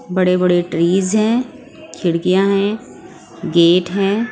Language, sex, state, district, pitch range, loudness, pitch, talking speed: Hindi, female, Punjab, Pathankot, 175-215 Hz, -16 LUFS, 185 Hz, 110 wpm